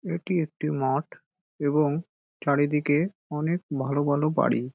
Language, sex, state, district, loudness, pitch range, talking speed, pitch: Bengali, male, West Bengal, Dakshin Dinajpur, -26 LUFS, 145-170 Hz, 115 wpm, 150 Hz